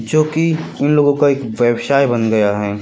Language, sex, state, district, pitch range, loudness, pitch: Hindi, male, Uttar Pradesh, Lucknow, 110-145 Hz, -15 LUFS, 140 Hz